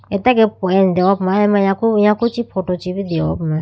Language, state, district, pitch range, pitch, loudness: Idu Mishmi, Arunachal Pradesh, Lower Dibang Valley, 185-210 Hz, 195 Hz, -16 LUFS